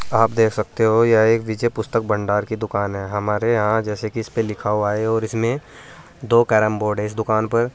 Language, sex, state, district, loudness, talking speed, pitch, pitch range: Hindi, male, Uttar Pradesh, Saharanpur, -20 LUFS, 225 wpm, 110 Hz, 105-115 Hz